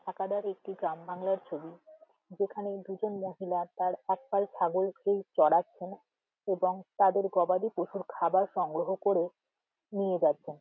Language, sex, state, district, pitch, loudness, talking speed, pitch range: Bengali, female, West Bengal, Jhargram, 190 Hz, -31 LUFS, 135 wpm, 180-200 Hz